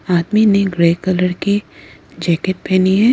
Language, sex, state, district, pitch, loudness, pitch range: Hindi, female, Arunachal Pradesh, Lower Dibang Valley, 180 Hz, -15 LUFS, 170-195 Hz